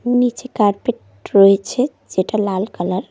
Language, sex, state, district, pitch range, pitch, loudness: Bengali, female, West Bengal, Cooch Behar, 190-245 Hz, 200 Hz, -17 LUFS